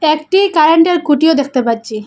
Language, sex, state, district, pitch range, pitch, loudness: Bengali, female, Assam, Hailakandi, 255-325 Hz, 310 Hz, -12 LUFS